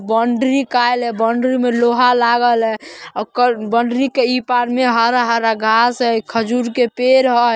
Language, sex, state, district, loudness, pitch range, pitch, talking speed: Magahi, female, Bihar, Samastipur, -15 LUFS, 230-250 Hz, 240 Hz, 180 wpm